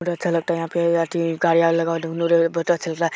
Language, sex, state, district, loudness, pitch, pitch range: Hindi, female, Bihar, Araria, -20 LUFS, 170 Hz, 165-170 Hz